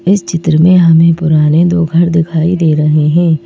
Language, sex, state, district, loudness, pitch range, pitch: Hindi, female, Madhya Pradesh, Bhopal, -9 LUFS, 155-170 Hz, 165 Hz